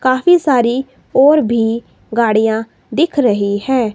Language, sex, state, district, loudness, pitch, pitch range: Hindi, female, Himachal Pradesh, Shimla, -14 LUFS, 235 Hz, 220-270 Hz